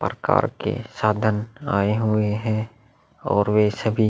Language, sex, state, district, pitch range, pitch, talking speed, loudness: Hindi, male, Bihar, Vaishali, 105-110 Hz, 110 Hz, 145 wpm, -22 LUFS